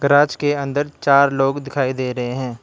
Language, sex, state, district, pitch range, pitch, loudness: Hindi, male, Karnataka, Bangalore, 130-145 Hz, 140 Hz, -18 LUFS